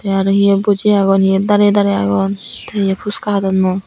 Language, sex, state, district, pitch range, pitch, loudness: Chakma, female, Tripura, Unakoti, 190-205 Hz, 195 Hz, -14 LUFS